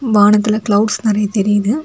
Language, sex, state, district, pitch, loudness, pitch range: Tamil, female, Tamil Nadu, Kanyakumari, 210 Hz, -14 LUFS, 205-220 Hz